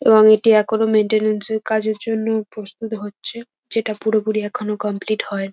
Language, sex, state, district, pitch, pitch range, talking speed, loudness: Bengali, female, West Bengal, North 24 Parganas, 215 Hz, 210-220 Hz, 150 wpm, -19 LUFS